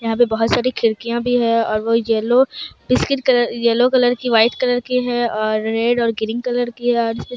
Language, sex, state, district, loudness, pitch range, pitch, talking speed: Hindi, female, Bihar, Kishanganj, -17 LUFS, 230-245 Hz, 235 Hz, 235 wpm